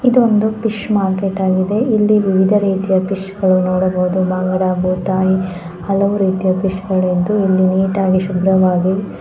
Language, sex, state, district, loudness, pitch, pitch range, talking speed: Kannada, female, Karnataka, Dharwad, -15 LUFS, 190 Hz, 185-200 Hz, 125 wpm